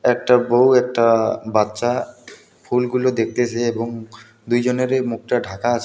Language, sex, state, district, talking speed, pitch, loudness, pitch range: Bengali, male, West Bengal, Alipurduar, 115 wpm, 120 Hz, -19 LUFS, 115-125 Hz